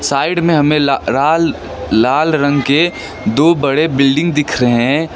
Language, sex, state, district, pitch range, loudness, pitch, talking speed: Hindi, male, West Bengal, Darjeeling, 140-160 Hz, -13 LUFS, 150 Hz, 150 wpm